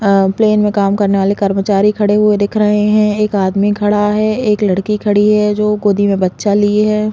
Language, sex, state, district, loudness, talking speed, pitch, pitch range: Hindi, female, Chhattisgarh, Balrampur, -13 LUFS, 225 wpm, 205 Hz, 200-210 Hz